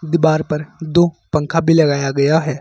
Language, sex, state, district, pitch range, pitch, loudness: Hindi, male, Uttar Pradesh, Lucknow, 150-165 Hz, 160 Hz, -16 LUFS